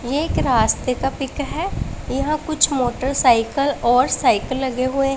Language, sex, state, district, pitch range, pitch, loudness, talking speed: Hindi, female, Punjab, Pathankot, 255-280 Hz, 270 Hz, -19 LUFS, 150 wpm